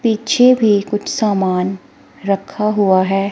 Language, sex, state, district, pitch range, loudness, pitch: Hindi, female, Himachal Pradesh, Shimla, 195-215 Hz, -15 LUFS, 205 Hz